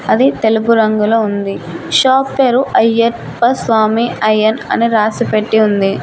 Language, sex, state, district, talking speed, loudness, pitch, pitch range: Telugu, female, Telangana, Mahabubabad, 130 wpm, -13 LUFS, 225 Hz, 215-240 Hz